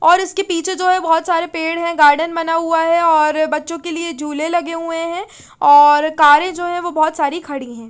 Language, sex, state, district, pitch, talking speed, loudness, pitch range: Hindi, female, Chandigarh, Chandigarh, 330 Hz, 230 wpm, -15 LUFS, 310-345 Hz